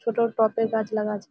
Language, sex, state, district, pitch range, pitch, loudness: Bengali, female, West Bengal, Malda, 215-230 Hz, 220 Hz, -24 LUFS